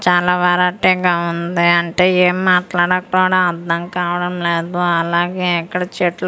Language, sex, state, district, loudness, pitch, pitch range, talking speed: Telugu, female, Andhra Pradesh, Manyam, -16 LUFS, 180 Hz, 170-180 Hz, 135 wpm